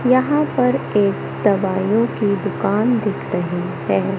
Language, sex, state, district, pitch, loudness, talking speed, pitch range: Hindi, male, Madhya Pradesh, Katni, 205 Hz, -19 LUFS, 130 wpm, 190-240 Hz